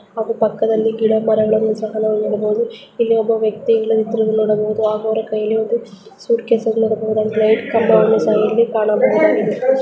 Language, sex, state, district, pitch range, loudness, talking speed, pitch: Kannada, female, Karnataka, Bijapur, 215-225 Hz, -16 LUFS, 135 wpm, 220 Hz